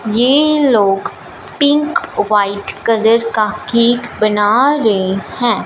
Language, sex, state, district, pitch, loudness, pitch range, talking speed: Hindi, female, Punjab, Fazilka, 230 Hz, -13 LUFS, 210-275 Hz, 105 wpm